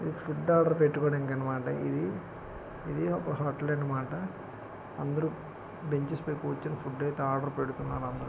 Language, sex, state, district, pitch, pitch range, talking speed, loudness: Telugu, male, Andhra Pradesh, Guntur, 145 Hz, 135-160 Hz, 160 wpm, -32 LUFS